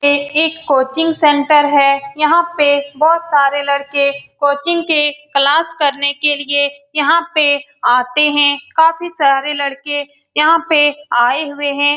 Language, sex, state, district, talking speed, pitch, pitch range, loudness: Hindi, female, Bihar, Saran, 140 wpm, 290 Hz, 285-310 Hz, -13 LUFS